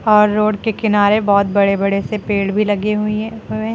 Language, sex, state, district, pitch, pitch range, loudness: Hindi, female, Uttar Pradesh, Lucknow, 210 Hz, 200-215 Hz, -16 LUFS